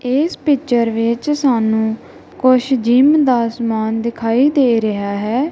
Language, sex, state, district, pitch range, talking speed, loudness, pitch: Punjabi, female, Punjab, Kapurthala, 225-265 Hz, 130 wpm, -15 LUFS, 240 Hz